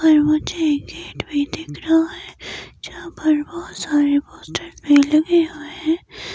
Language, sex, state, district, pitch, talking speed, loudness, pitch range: Hindi, female, Himachal Pradesh, Shimla, 310 Hz, 150 wpm, -19 LUFS, 290-325 Hz